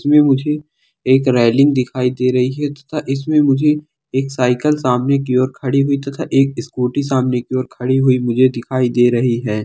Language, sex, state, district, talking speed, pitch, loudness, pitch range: Hindi, male, Bihar, Darbhanga, 195 wpm, 130 Hz, -16 LUFS, 125-145 Hz